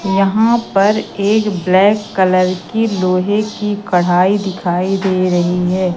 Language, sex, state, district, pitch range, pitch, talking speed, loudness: Hindi, female, Madhya Pradesh, Katni, 185-210 Hz, 195 Hz, 130 wpm, -14 LUFS